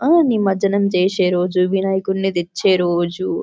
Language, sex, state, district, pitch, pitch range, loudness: Telugu, female, Telangana, Karimnagar, 190 Hz, 180-195 Hz, -17 LUFS